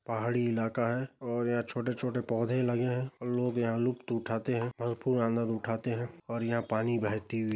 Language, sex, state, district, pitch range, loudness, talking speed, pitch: Hindi, male, Chhattisgarh, Bastar, 115-125 Hz, -32 LUFS, 205 wpm, 120 Hz